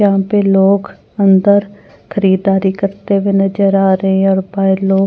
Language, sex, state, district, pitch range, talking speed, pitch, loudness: Hindi, female, Delhi, New Delhi, 195-200 Hz, 155 wpm, 195 Hz, -13 LUFS